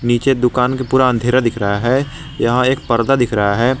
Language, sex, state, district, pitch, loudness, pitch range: Hindi, male, Jharkhand, Garhwa, 125 Hz, -15 LUFS, 115-130 Hz